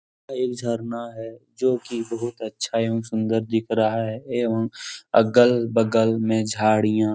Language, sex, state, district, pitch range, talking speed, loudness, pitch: Hindi, male, Bihar, Jahanabad, 110-120 Hz, 140 wpm, -22 LUFS, 115 Hz